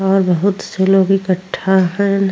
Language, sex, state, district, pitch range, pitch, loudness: Bhojpuri, female, Uttar Pradesh, Ghazipur, 190-195 Hz, 190 Hz, -15 LUFS